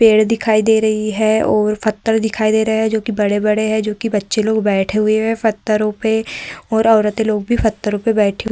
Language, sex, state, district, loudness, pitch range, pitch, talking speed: Hindi, female, Bihar, Vaishali, -16 LUFS, 215-220 Hz, 215 Hz, 230 wpm